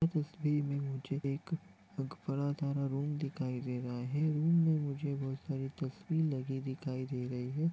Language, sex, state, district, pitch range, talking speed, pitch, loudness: Hindi, male, Chhattisgarh, Bilaspur, 135-155 Hz, 165 wpm, 140 Hz, -36 LUFS